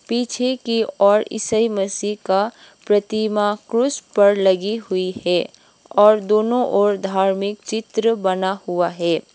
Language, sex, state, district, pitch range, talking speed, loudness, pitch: Hindi, female, Sikkim, Gangtok, 195-225 Hz, 130 wpm, -19 LUFS, 205 Hz